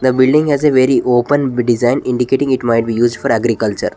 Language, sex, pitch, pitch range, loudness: English, male, 125 Hz, 120-135 Hz, -14 LUFS